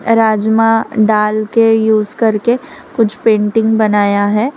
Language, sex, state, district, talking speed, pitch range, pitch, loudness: Hindi, female, Gujarat, Valsad, 120 wpm, 215-225 Hz, 220 Hz, -12 LUFS